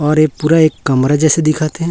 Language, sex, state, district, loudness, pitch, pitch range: Hindi, male, Chhattisgarh, Raipur, -13 LUFS, 155 Hz, 150-160 Hz